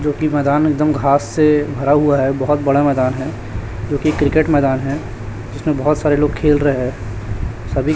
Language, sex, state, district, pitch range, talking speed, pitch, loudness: Hindi, male, Chhattisgarh, Raipur, 115-150 Hz, 180 wpm, 140 Hz, -16 LUFS